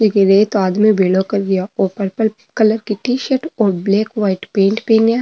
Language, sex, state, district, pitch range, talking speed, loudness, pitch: Marwari, female, Rajasthan, Nagaur, 195-225 Hz, 205 wpm, -15 LUFS, 210 Hz